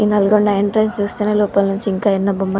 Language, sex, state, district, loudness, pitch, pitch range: Telugu, female, Telangana, Nalgonda, -16 LUFS, 205 Hz, 195-210 Hz